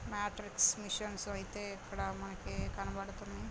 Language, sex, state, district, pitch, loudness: Telugu, female, Andhra Pradesh, Guntur, 195 Hz, -38 LUFS